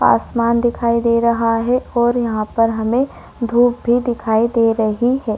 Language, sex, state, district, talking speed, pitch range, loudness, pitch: Hindi, female, Chhattisgarh, Korba, 165 wpm, 225-240 Hz, -17 LUFS, 235 Hz